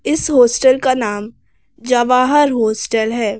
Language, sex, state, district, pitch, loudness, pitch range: Hindi, female, Madhya Pradesh, Bhopal, 245 Hz, -14 LUFS, 220-260 Hz